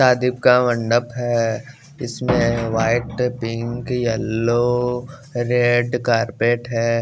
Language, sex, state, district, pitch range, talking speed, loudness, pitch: Hindi, male, Bihar, West Champaran, 115-125 Hz, 95 wpm, -20 LUFS, 120 Hz